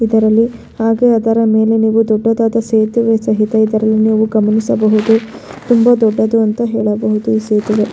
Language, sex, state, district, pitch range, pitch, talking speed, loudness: Kannada, female, Karnataka, Bellary, 215-225 Hz, 220 Hz, 130 wpm, -13 LUFS